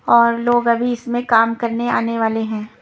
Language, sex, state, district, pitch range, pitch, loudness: Hindi, female, Punjab, Kapurthala, 225-240 Hz, 235 Hz, -17 LUFS